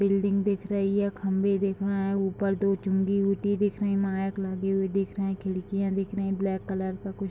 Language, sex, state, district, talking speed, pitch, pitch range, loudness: Hindi, female, Bihar, Madhepura, 190 wpm, 195 Hz, 195-200 Hz, -28 LUFS